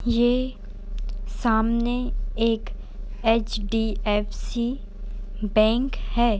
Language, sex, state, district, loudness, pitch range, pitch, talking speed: Hindi, female, Uttar Pradesh, Etah, -25 LUFS, 220-240 Hz, 230 Hz, 55 wpm